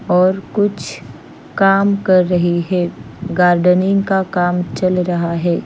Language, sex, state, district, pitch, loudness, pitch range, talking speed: Hindi, female, Chandigarh, Chandigarh, 180 Hz, -15 LUFS, 175-195 Hz, 125 wpm